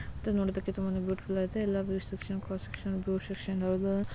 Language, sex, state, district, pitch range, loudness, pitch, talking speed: Kannada, female, Karnataka, Mysore, 185-195 Hz, -33 LUFS, 190 Hz, 185 wpm